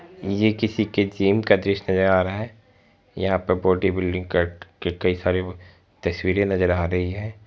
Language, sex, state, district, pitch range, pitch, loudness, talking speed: Hindi, female, Bihar, Araria, 90-100 Hz, 95 Hz, -22 LUFS, 175 wpm